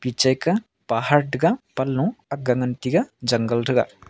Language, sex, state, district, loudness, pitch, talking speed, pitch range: Wancho, male, Arunachal Pradesh, Longding, -22 LUFS, 130 Hz, 145 wpm, 125-165 Hz